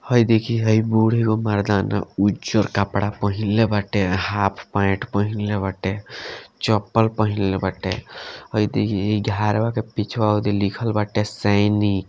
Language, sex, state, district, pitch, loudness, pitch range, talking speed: Bhojpuri, male, Bihar, Gopalganj, 105 Hz, -21 LUFS, 100-110 Hz, 135 wpm